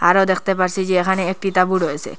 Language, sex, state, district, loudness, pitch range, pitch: Bengali, female, Assam, Hailakandi, -18 LUFS, 185-190 Hz, 185 Hz